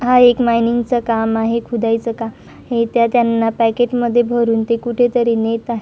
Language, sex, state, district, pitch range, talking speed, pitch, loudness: Marathi, female, Maharashtra, Nagpur, 230-240 Hz, 175 wpm, 235 Hz, -16 LUFS